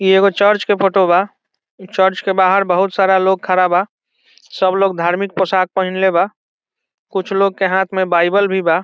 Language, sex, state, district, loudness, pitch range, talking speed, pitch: Bhojpuri, male, Bihar, Saran, -15 LUFS, 185-195 Hz, 195 wpm, 190 Hz